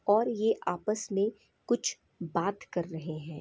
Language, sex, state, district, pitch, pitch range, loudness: Hindi, female, Chhattisgarh, Bastar, 200 Hz, 170-220 Hz, -32 LUFS